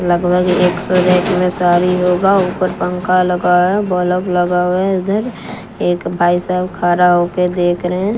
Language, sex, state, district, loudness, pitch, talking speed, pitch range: Hindi, female, Bihar, West Champaran, -14 LUFS, 180 Hz, 185 wpm, 180-185 Hz